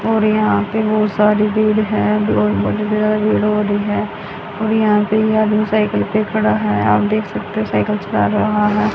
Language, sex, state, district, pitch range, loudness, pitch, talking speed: Hindi, female, Haryana, Rohtak, 205-215 Hz, -16 LUFS, 210 Hz, 155 wpm